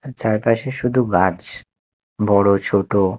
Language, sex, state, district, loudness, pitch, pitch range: Bengali, male, Chhattisgarh, Raipur, -17 LUFS, 105 Hz, 100-125 Hz